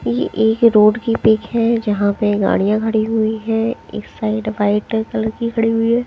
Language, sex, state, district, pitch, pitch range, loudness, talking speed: Hindi, female, Himachal Pradesh, Shimla, 220 Hz, 210-225 Hz, -17 LUFS, 195 wpm